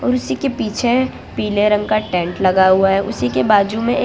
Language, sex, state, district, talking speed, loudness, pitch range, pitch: Hindi, female, Gujarat, Valsad, 220 wpm, -16 LUFS, 190-235 Hz, 210 Hz